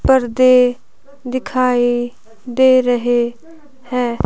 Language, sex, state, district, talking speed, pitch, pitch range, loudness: Hindi, female, Himachal Pradesh, Shimla, 70 wpm, 250 Hz, 245-260 Hz, -15 LUFS